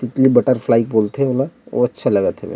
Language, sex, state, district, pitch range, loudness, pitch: Chhattisgarhi, male, Chhattisgarh, Rajnandgaon, 115-130 Hz, -17 LUFS, 125 Hz